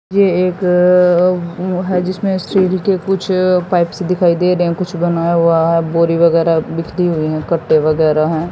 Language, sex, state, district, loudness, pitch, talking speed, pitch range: Hindi, female, Haryana, Jhajjar, -14 LUFS, 175 Hz, 170 wpm, 165-185 Hz